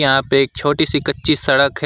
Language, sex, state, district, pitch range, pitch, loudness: Hindi, male, West Bengal, Alipurduar, 135-150 Hz, 140 Hz, -16 LUFS